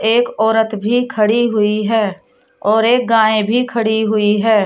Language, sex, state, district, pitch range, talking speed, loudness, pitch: Hindi, female, Uttar Pradesh, Shamli, 215-235 Hz, 165 wpm, -15 LUFS, 220 Hz